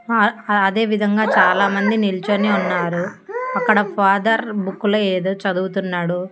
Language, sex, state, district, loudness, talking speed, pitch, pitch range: Telugu, female, Andhra Pradesh, Annamaya, -18 LUFS, 115 wpm, 200 Hz, 190-215 Hz